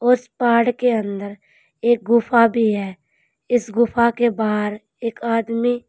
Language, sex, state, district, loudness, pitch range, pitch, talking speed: Hindi, female, Uttar Pradesh, Saharanpur, -19 LUFS, 215-240 Hz, 235 Hz, 145 wpm